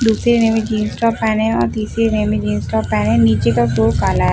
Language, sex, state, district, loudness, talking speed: Hindi, female, Bihar, Gopalganj, -16 LUFS, 280 wpm